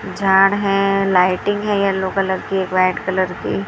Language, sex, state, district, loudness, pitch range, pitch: Hindi, female, Maharashtra, Mumbai Suburban, -17 LUFS, 185-195 Hz, 195 Hz